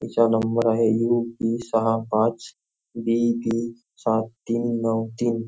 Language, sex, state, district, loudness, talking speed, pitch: Marathi, male, Maharashtra, Nagpur, -23 LUFS, 140 wpm, 115 Hz